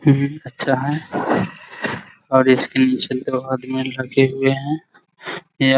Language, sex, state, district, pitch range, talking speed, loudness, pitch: Hindi, male, Bihar, Begusarai, 130-140 Hz, 135 wpm, -19 LUFS, 135 Hz